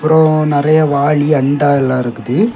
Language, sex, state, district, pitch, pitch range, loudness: Tamil, male, Tamil Nadu, Kanyakumari, 145 Hz, 140-155 Hz, -12 LUFS